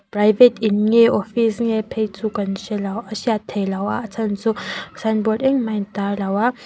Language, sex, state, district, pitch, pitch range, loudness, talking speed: Mizo, female, Mizoram, Aizawl, 220 Hz, 205-230 Hz, -19 LUFS, 205 wpm